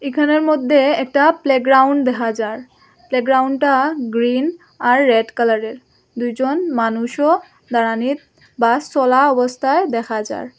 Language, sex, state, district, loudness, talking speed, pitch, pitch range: Bengali, female, Assam, Hailakandi, -16 LUFS, 110 wpm, 260 Hz, 235-285 Hz